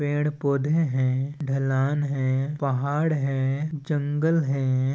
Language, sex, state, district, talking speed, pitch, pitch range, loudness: Chhattisgarhi, male, Chhattisgarh, Balrampur, 110 wpm, 140 Hz, 135-150 Hz, -25 LUFS